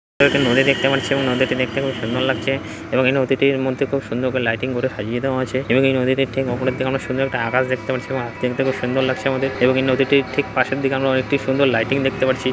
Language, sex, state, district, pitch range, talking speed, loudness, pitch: Bengali, male, West Bengal, Jalpaiguri, 130-135 Hz, 245 wpm, -19 LUFS, 130 Hz